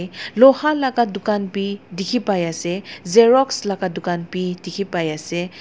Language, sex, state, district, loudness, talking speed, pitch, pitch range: Nagamese, female, Nagaland, Dimapur, -19 LUFS, 150 wpm, 195 Hz, 180-230 Hz